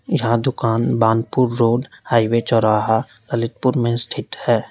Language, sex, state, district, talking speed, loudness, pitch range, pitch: Hindi, male, Uttar Pradesh, Lalitpur, 125 wpm, -18 LUFS, 115-125 Hz, 115 Hz